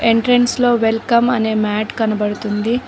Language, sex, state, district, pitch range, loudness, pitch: Telugu, female, Telangana, Mahabubabad, 215-240 Hz, -16 LUFS, 225 Hz